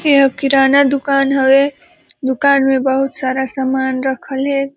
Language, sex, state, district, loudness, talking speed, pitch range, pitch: Hindi, female, Chhattisgarh, Balrampur, -14 LUFS, 165 wpm, 265-275 Hz, 270 Hz